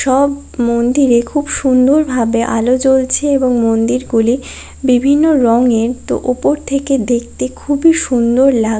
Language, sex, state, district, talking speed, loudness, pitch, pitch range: Bengali, female, West Bengal, Kolkata, 115 wpm, -13 LUFS, 255 Hz, 235-275 Hz